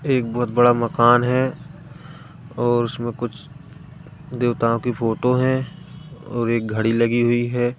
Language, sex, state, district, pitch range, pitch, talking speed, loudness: Hindi, male, Madhya Pradesh, Katni, 120-140 Hz, 120 Hz, 140 wpm, -20 LUFS